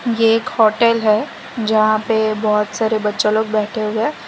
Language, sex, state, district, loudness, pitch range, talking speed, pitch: Hindi, female, Gujarat, Valsad, -16 LUFS, 215-225 Hz, 180 wpm, 220 Hz